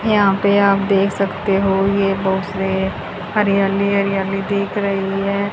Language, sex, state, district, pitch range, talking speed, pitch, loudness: Hindi, female, Haryana, Charkhi Dadri, 195-200 Hz, 150 wpm, 195 Hz, -17 LUFS